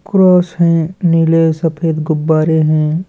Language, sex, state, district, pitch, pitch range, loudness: Hindi, male, West Bengal, Malda, 165 Hz, 160-170 Hz, -13 LUFS